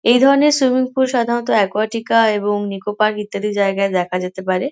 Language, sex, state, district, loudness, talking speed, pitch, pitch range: Bengali, female, West Bengal, Kolkata, -17 LUFS, 180 wpm, 215 Hz, 200-240 Hz